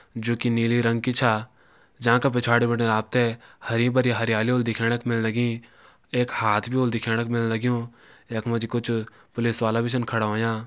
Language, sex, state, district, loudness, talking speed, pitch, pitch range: Garhwali, male, Uttarakhand, Uttarkashi, -24 LUFS, 200 wpm, 115 Hz, 115-120 Hz